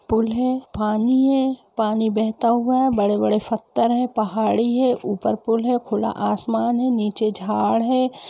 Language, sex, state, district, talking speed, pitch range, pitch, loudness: Hindi, female, Jharkhand, Jamtara, 160 wpm, 220-250 Hz, 230 Hz, -20 LUFS